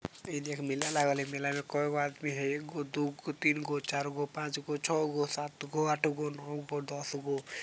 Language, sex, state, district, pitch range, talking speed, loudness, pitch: Bajjika, female, Bihar, Vaishali, 145-150 Hz, 155 wpm, -34 LUFS, 145 Hz